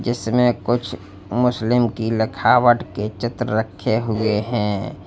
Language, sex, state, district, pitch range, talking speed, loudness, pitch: Hindi, male, Uttar Pradesh, Lalitpur, 105-120 Hz, 120 wpm, -20 LUFS, 110 Hz